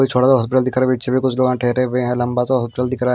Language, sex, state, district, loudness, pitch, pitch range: Hindi, male, Himachal Pradesh, Shimla, -17 LUFS, 125 Hz, 125-130 Hz